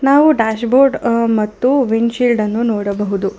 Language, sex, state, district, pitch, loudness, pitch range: Kannada, female, Karnataka, Bangalore, 230 Hz, -14 LUFS, 215-255 Hz